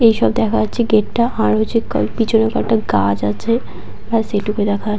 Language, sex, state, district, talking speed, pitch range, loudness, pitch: Bengali, female, West Bengal, Purulia, 180 wpm, 200-230 Hz, -17 LUFS, 215 Hz